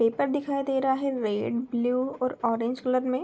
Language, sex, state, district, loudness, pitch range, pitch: Hindi, female, Bihar, Begusarai, -27 LUFS, 240-270 Hz, 255 Hz